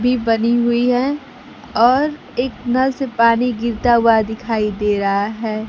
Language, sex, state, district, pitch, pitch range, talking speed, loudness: Hindi, female, Bihar, Kaimur, 235 Hz, 225-250 Hz, 160 wpm, -17 LUFS